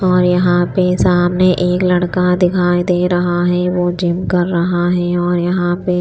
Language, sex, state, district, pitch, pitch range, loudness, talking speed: Hindi, female, Chandigarh, Chandigarh, 180 Hz, 175-180 Hz, -14 LUFS, 180 wpm